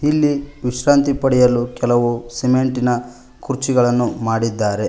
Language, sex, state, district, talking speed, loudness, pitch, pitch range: Kannada, male, Karnataka, Koppal, 85 wpm, -17 LUFS, 125 Hz, 120-135 Hz